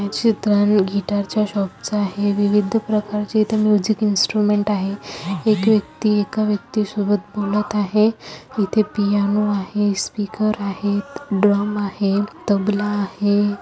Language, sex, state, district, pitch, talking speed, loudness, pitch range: Marathi, female, Maharashtra, Solapur, 205 Hz, 130 wpm, -19 LUFS, 200-215 Hz